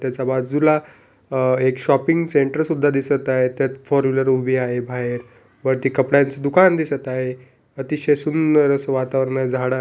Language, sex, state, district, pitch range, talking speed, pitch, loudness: Marathi, male, Maharashtra, Pune, 130-145 Hz, 155 wpm, 135 Hz, -19 LUFS